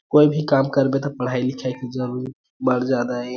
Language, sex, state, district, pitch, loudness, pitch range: Chhattisgarhi, male, Chhattisgarh, Jashpur, 130 Hz, -21 LUFS, 125-135 Hz